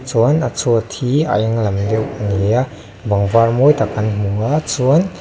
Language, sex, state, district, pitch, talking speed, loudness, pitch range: Mizo, male, Mizoram, Aizawl, 115 Hz, 205 wpm, -16 LUFS, 105-135 Hz